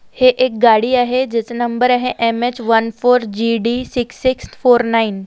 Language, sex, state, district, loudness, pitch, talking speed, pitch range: Marathi, female, Maharashtra, Solapur, -15 LUFS, 240 Hz, 180 wpm, 230-250 Hz